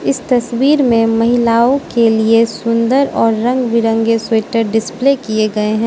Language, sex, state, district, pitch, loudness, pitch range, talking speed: Hindi, female, Mizoram, Aizawl, 230 Hz, -13 LUFS, 225-250 Hz, 145 wpm